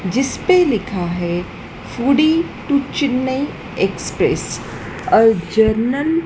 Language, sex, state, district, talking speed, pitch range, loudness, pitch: Hindi, female, Madhya Pradesh, Dhar, 95 wpm, 220-285 Hz, -17 LUFS, 260 Hz